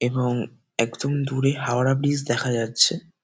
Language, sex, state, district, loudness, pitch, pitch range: Bengali, male, West Bengal, Kolkata, -23 LUFS, 130 Hz, 120-140 Hz